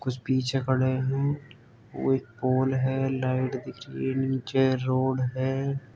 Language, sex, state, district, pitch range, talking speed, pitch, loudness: Hindi, male, Uttar Pradesh, Jalaun, 130-135 Hz, 150 wpm, 130 Hz, -27 LUFS